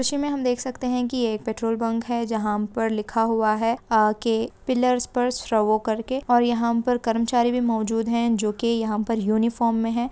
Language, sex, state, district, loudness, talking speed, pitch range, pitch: Hindi, female, Andhra Pradesh, Guntur, -23 LUFS, 230 wpm, 220-245 Hz, 230 Hz